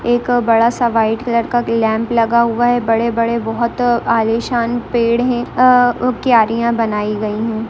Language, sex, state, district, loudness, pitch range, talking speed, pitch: Hindi, female, Bihar, Madhepura, -15 LUFS, 225-240 Hz, 155 wpm, 235 Hz